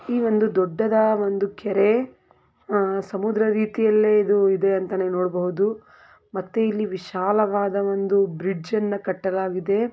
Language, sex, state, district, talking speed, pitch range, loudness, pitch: Kannada, female, Karnataka, Belgaum, 110 wpm, 190-215 Hz, -22 LUFS, 200 Hz